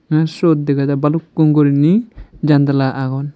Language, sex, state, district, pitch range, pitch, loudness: Chakma, male, Tripura, Dhalai, 140-160 Hz, 150 Hz, -15 LUFS